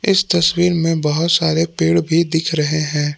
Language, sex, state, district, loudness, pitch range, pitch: Hindi, male, Jharkhand, Palamu, -16 LUFS, 150-170 Hz, 165 Hz